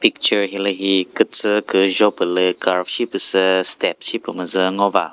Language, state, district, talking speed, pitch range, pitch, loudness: Chakhesang, Nagaland, Dimapur, 175 wpm, 95-100 Hz, 95 Hz, -17 LUFS